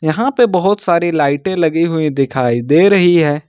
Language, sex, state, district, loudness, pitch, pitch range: Hindi, male, Jharkhand, Ranchi, -13 LUFS, 165 Hz, 145-185 Hz